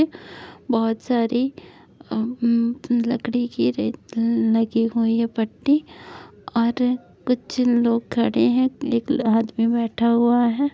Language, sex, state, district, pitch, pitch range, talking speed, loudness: Hindi, female, Uttar Pradesh, Etah, 235 Hz, 230-250 Hz, 115 wpm, -21 LUFS